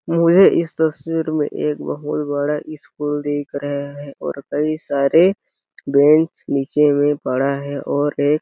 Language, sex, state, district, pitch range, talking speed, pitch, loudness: Hindi, male, Chhattisgarh, Sarguja, 145-155 Hz, 155 wpm, 145 Hz, -18 LUFS